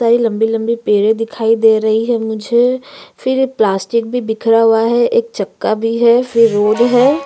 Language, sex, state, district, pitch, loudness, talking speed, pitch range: Hindi, female, Uttarakhand, Tehri Garhwal, 230 Hz, -14 LUFS, 180 wpm, 220-240 Hz